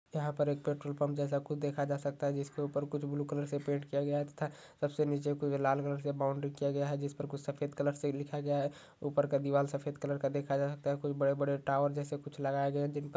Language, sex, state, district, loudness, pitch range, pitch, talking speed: Hindi, male, Maharashtra, Nagpur, -35 LUFS, 140-145 Hz, 145 Hz, 280 wpm